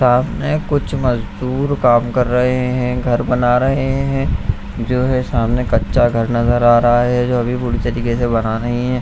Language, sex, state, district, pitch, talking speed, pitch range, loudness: Hindi, male, Bihar, Jamui, 125 Hz, 185 wpm, 120-125 Hz, -16 LUFS